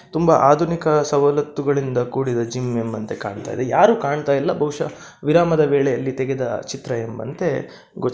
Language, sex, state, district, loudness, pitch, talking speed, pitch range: Kannada, male, Karnataka, Dakshina Kannada, -20 LUFS, 140 Hz, 135 wpm, 125-150 Hz